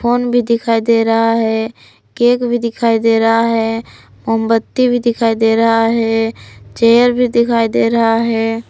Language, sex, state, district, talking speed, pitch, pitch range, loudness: Hindi, female, Jharkhand, Palamu, 165 wpm, 230 Hz, 225-235 Hz, -14 LUFS